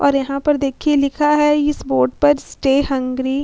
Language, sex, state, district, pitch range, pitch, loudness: Hindi, female, Uttar Pradesh, Hamirpur, 270-295 Hz, 280 Hz, -17 LUFS